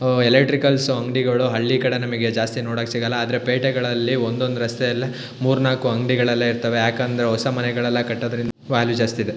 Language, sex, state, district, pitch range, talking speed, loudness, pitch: Kannada, male, Karnataka, Shimoga, 120-130 Hz, 155 wpm, -20 LUFS, 120 Hz